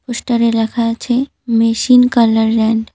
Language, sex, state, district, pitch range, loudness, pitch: Bengali, female, West Bengal, Cooch Behar, 225-245 Hz, -14 LUFS, 230 Hz